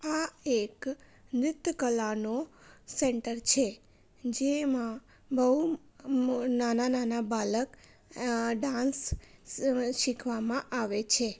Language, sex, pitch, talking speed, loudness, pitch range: Gujarati, female, 250 Hz, 80 wpm, -31 LUFS, 235-270 Hz